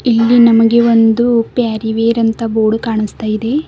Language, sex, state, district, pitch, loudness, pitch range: Kannada, female, Karnataka, Bidar, 230 Hz, -12 LUFS, 225-235 Hz